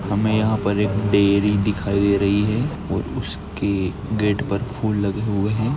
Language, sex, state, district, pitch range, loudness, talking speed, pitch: Hindi, male, Maharashtra, Nagpur, 100-110 Hz, -21 LUFS, 175 wpm, 105 Hz